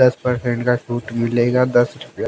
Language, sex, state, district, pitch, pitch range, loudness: Hindi, male, Haryana, Jhajjar, 120 Hz, 120-125 Hz, -19 LUFS